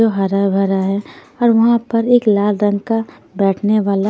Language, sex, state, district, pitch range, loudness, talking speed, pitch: Hindi, female, Haryana, Rohtak, 195-225 Hz, -15 LUFS, 190 wpm, 205 Hz